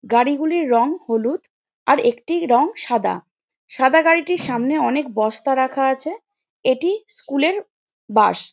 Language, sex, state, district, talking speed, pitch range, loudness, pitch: Bengali, female, West Bengal, Jalpaiguri, 125 wpm, 250-340 Hz, -19 LUFS, 285 Hz